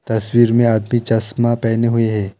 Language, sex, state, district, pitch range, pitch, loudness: Hindi, male, West Bengal, Alipurduar, 110-120 Hz, 115 Hz, -16 LUFS